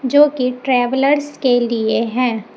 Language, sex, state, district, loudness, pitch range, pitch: Hindi, female, Chhattisgarh, Raipur, -16 LUFS, 240-270 Hz, 255 Hz